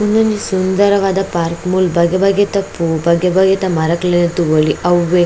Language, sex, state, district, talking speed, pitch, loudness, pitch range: Tulu, female, Karnataka, Dakshina Kannada, 150 wpm, 180 Hz, -14 LUFS, 170-195 Hz